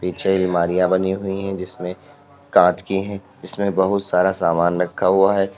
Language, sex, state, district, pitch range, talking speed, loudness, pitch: Hindi, male, Uttar Pradesh, Lalitpur, 90-95 Hz, 170 wpm, -19 LUFS, 95 Hz